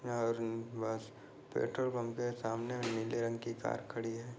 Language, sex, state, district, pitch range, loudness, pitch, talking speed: Hindi, male, Goa, North and South Goa, 115-120 Hz, -38 LUFS, 115 Hz, 150 wpm